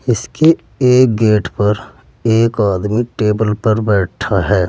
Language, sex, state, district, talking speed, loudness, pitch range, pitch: Hindi, male, Uttar Pradesh, Saharanpur, 125 wpm, -14 LUFS, 105-115 Hz, 110 Hz